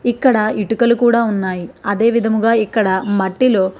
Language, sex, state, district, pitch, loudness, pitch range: Telugu, female, Andhra Pradesh, Krishna, 220 Hz, -15 LUFS, 195-235 Hz